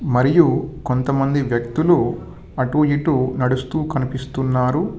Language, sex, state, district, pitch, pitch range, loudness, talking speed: Telugu, male, Telangana, Hyderabad, 130 Hz, 125-150 Hz, -19 LUFS, 85 wpm